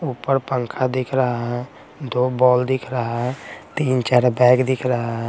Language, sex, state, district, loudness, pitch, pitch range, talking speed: Hindi, male, Bihar, Patna, -20 LUFS, 125 Hz, 125-130 Hz, 170 wpm